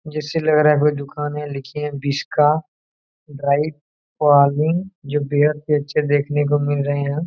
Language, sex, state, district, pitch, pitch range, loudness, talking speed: Hindi, male, Bihar, Saran, 150 Hz, 145-150 Hz, -19 LUFS, 190 wpm